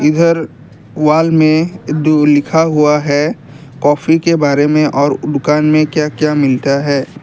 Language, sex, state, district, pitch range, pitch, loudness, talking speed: Hindi, male, Assam, Kamrup Metropolitan, 145-155 Hz, 150 Hz, -12 LUFS, 160 wpm